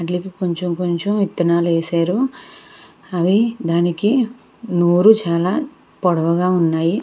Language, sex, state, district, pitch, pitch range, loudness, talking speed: Telugu, female, Andhra Pradesh, Krishna, 180 Hz, 170-220 Hz, -18 LUFS, 85 wpm